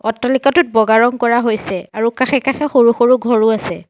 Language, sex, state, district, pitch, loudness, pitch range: Assamese, female, Assam, Sonitpur, 235 Hz, -14 LUFS, 225-255 Hz